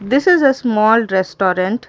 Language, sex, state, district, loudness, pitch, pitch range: English, female, Karnataka, Bangalore, -14 LUFS, 225 Hz, 190-260 Hz